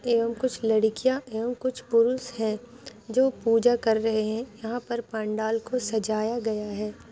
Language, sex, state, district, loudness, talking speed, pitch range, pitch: Hindi, female, Maharashtra, Nagpur, -26 LUFS, 160 wpm, 220-245 Hz, 230 Hz